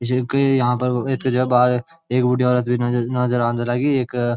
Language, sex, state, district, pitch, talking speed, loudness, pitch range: Garhwali, male, Uttarakhand, Uttarkashi, 125 Hz, 220 wpm, -19 LUFS, 120-130 Hz